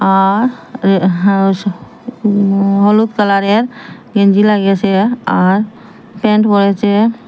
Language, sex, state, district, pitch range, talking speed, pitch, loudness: Bengali, female, Assam, Hailakandi, 195-220 Hz, 90 wpm, 205 Hz, -12 LUFS